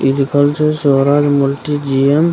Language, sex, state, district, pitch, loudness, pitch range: Maithili, male, Bihar, Begusarai, 145 Hz, -13 LUFS, 140-145 Hz